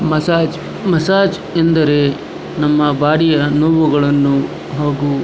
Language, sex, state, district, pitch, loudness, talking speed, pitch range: Kannada, male, Karnataka, Dharwad, 155 Hz, -14 LUFS, 90 wpm, 145-165 Hz